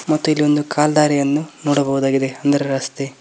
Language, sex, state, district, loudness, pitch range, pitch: Kannada, male, Karnataka, Koppal, -17 LUFS, 135-150 Hz, 145 Hz